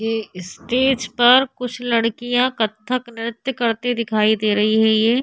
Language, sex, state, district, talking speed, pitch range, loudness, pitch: Hindi, female, Uttar Pradesh, Hamirpur, 150 wpm, 220-245 Hz, -19 LUFS, 230 Hz